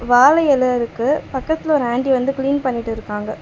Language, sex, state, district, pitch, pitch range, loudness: Tamil, female, Tamil Nadu, Chennai, 260 Hz, 240-280 Hz, -17 LUFS